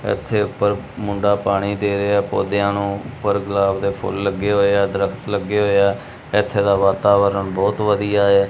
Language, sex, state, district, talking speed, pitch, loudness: Punjabi, male, Punjab, Kapurthala, 170 wpm, 100 Hz, -19 LUFS